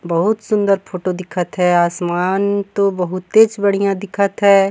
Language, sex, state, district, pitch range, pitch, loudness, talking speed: Surgujia, female, Chhattisgarh, Sarguja, 180-200 Hz, 195 Hz, -16 LUFS, 125 wpm